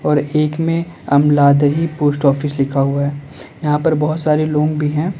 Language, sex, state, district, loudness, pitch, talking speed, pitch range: Hindi, male, Uttar Pradesh, Lalitpur, -16 LUFS, 150 Hz, 185 wpm, 145-155 Hz